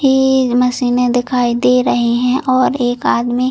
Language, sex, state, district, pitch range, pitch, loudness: Hindi, female, Chhattisgarh, Bilaspur, 245-255 Hz, 250 Hz, -14 LUFS